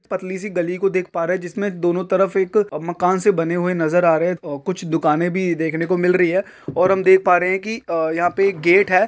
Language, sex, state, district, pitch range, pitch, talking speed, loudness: Hindi, male, West Bengal, Kolkata, 170-190 Hz, 180 Hz, 275 wpm, -19 LUFS